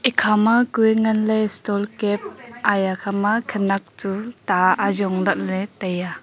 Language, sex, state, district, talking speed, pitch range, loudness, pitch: Wancho, female, Arunachal Pradesh, Longding, 125 wpm, 195-220 Hz, -20 LUFS, 205 Hz